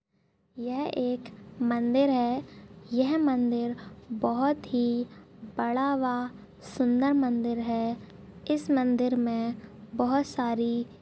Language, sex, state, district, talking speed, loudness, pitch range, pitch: Hindi, female, Uttarakhand, Tehri Garhwal, 105 wpm, -28 LUFS, 230-255 Hz, 240 Hz